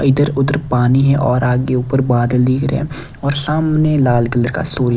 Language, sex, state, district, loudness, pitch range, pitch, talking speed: Hindi, male, Bihar, Patna, -15 LUFS, 125-145 Hz, 135 Hz, 205 wpm